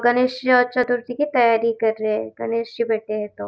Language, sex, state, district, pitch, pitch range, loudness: Hindi, female, Maharashtra, Nagpur, 230 Hz, 215-245 Hz, -20 LUFS